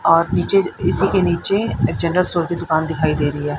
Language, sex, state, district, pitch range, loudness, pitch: Hindi, female, Haryana, Rohtak, 155-180 Hz, -17 LUFS, 170 Hz